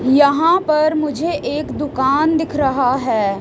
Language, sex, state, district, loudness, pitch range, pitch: Hindi, female, Haryana, Rohtak, -16 LUFS, 265-310 Hz, 290 Hz